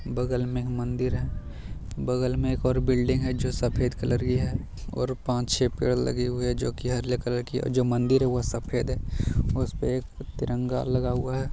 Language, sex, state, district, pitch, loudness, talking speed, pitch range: Hindi, male, Bihar, Jamui, 125 Hz, -27 LUFS, 200 wpm, 120-125 Hz